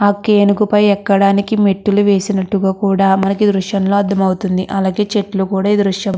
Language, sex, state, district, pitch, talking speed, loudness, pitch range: Telugu, female, Andhra Pradesh, Krishna, 200 Hz, 155 wpm, -14 LUFS, 195-205 Hz